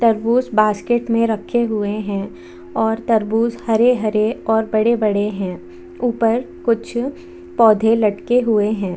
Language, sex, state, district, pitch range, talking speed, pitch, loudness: Hindi, female, Chhattisgarh, Bastar, 210-235 Hz, 135 wpm, 220 Hz, -18 LUFS